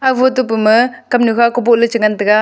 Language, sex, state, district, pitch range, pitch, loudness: Wancho, female, Arunachal Pradesh, Longding, 220-250 Hz, 235 Hz, -13 LUFS